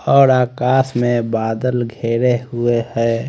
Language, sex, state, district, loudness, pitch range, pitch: Hindi, male, Haryana, Rohtak, -17 LUFS, 115-125 Hz, 120 Hz